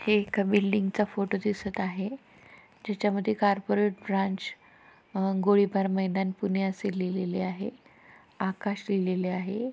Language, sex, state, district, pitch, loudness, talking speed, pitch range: Marathi, female, Maharashtra, Pune, 200 Hz, -28 LUFS, 115 wpm, 190-205 Hz